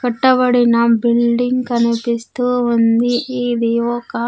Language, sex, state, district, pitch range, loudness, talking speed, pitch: Telugu, female, Andhra Pradesh, Sri Satya Sai, 235-245 Hz, -15 LUFS, 85 wpm, 240 Hz